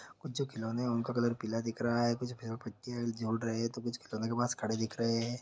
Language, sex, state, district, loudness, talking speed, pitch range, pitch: Hindi, male, Bihar, Muzaffarpur, -35 LUFS, 310 wpm, 115-120 Hz, 115 Hz